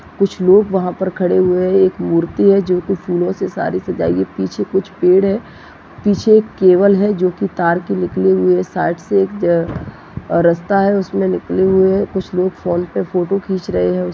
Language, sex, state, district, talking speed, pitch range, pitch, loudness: Hindi, female, Chhattisgarh, Jashpur, 210 wpm, 175-195 Hz, 185 Hz, -15 LUFS